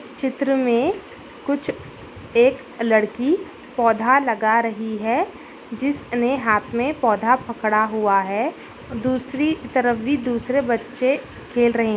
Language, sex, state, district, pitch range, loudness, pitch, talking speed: Hindi, female, Bihar, Bhagalpur, 230-275 Hz, -21 LUFS, 245 Hz, 125 wpm